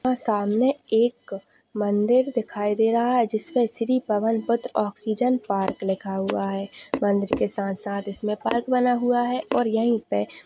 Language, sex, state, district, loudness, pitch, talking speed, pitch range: Hindi, female, Chhattisgarh, Sarguja, -24 LUFS, 220 Hz, 160 wpm, 200-245 Hz